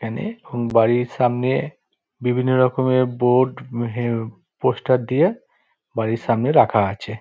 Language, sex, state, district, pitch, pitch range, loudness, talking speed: Bengali, male, West Bengal, Dakshin Dinajpur, 125 Hz, 115-130 Hz, -20 LUFS, 110 wpm